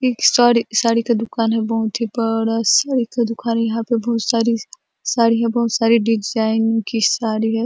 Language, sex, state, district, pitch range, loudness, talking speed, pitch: Hindi, female, Chhattisgarh, Bastar, 225-235 Hz, -18 LUFS, 195 wpm, 230 Hz